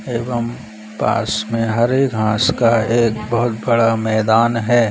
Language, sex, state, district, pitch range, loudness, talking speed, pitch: Hindi, male, Chhattisgarh, Bilaspur, 110-120 Hz, -17 LUFS, 135 wpm, 115 Hz